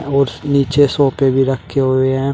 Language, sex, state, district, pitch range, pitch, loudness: Hindi, male, Uttar Pradesh, Shamli, 130-140 Hz, 135 Hz, -15 LUFS